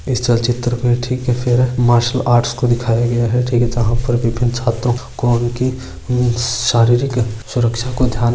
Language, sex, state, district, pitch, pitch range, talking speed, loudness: Marwari, male, Rajasthan, Churu, 120 Hz, 120-125 Hz, 180 wpm, -16 LUFS